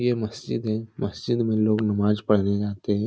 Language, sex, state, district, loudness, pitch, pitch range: Hindi, male, Bihar, Darbhanga, -24 LUFS, 110 Hz, 105-110 Hz